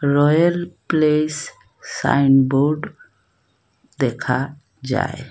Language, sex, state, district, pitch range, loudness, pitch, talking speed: Bengali, female, Assam, Hailakandi, 135-155 Hz, -19 LUFS, 145 Hz, 70 wpm